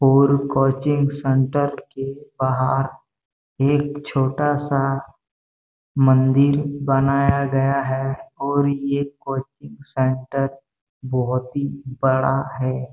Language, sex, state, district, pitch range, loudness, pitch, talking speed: Hindi, male, Chhattisgarh, Bastar, 130-140 Hz, -21 LUFS, 135 Hz, 90 wpm